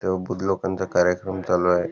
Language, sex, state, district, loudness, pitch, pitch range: Marathi, male, Karnataka, Belgaum, -23 LUFS, 95 Hz, 90-95 Hz